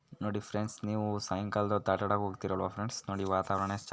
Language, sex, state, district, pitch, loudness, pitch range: Kannada, female, Karnataka, Mysore, 105 Hz, -34 LUFS, 95-105 Hz